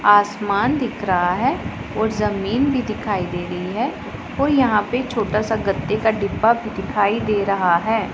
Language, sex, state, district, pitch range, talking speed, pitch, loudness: Hindi, female, Punjab, Pathankot, 200-230 Hz, 170 wpm, 210 Hz, -20 LUFS